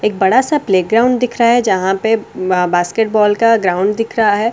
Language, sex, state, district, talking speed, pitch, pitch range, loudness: Hindi, female, Delhi, New Delhi, 210 wpm, 220 Hz, 190-230 Hz, -14 LUFS